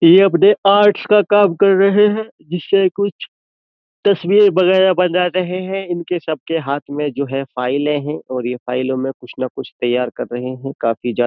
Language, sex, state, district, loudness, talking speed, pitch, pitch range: Hindi, male, Uttar Pradesh, Jyotiba Phule Nagar, -16 LUFS, 195 wpm, 170 Hz, 130-195 Hz